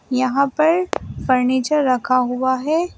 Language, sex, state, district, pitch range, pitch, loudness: Hindi, female, Uttar Pradesh, Shamli, 255-305 Hz, 260 Hz, -18 LUFS